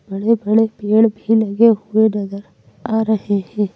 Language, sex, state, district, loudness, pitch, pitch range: Hindi, female, Madhya Pradesh, Bhopal, -16 LUFS, 215 Hz, 205-220 Hz